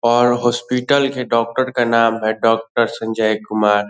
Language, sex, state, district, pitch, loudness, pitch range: Hindi, male, Bihar, Lakhisarai, 115 Hz, -17 LUFS, 110-120 Hz